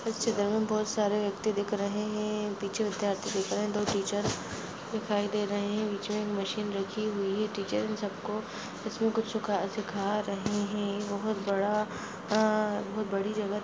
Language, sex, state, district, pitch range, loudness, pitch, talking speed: Hindi, female, Chhattisgarh, Balrampur, 200-215 Hz, -31 LUFS, 210 Hz, 175 wpm